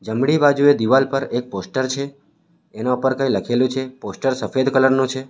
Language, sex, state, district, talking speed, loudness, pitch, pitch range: Gujarati, male, Gujarat, Valsad, 190 wpm, -19 LUFS, 130 Hz, 125-140 Hz